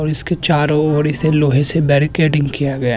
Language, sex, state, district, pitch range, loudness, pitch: Hindi, male, Maharashtra, Chandrapur, 140-155 Hz, -15 LUFS, 150 Hz